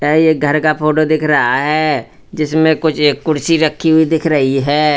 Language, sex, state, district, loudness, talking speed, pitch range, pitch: Hindi, male, Uttar Pradesh, Lalitpur, -13 LUFS, 205 wpm, 150-160 Hz, 155 Hz